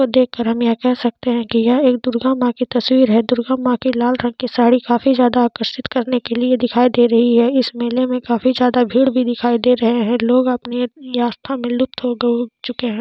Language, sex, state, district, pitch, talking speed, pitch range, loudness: Hindi, female, Jharkhand, Sahebganj, 245 Hz, 250 wpm, 240-255 Hz, -16 LUFS